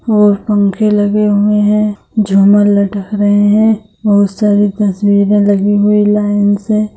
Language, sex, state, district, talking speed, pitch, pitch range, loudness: Hindi, female, Bihar, Saharsa, 145 wpm, 205 Hz, 205-210 Hz, -11 LUFS